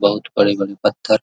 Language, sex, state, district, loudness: Hindi, male, Bihar, Araria, -18 LUFS